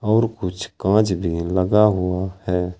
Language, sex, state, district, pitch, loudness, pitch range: Hindi, male, Uttar Pradesh, Saharanpur, 95 Hz, -20 LUFS, 90-105 Hz